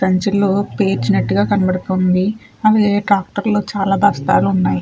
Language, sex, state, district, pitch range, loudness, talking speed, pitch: Telugu, female, Andhra Pradesh, Chittoor, 185-205 Hz, -16 LUFS, 85 wpm, 195 Hz